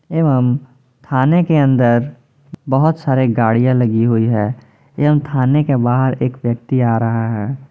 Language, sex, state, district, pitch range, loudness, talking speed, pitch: Hindi, male, Jharkhand, Ranchi, 120-140 Hz, -15 LUFS, 150 wpm, 130 Hz